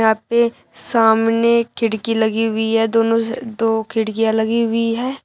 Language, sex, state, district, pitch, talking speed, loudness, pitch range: Hindi, female, Uttar Pradesh, Shamli, 225 Hz, 160 wpm, -17 LUFS, 220-230 Hz